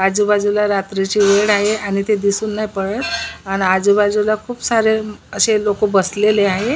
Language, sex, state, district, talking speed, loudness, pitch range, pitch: Marathi, female, Maharashtra, Nagpur, 150 wpm, -16 LUFS, 200-215 Hz, 210 Hz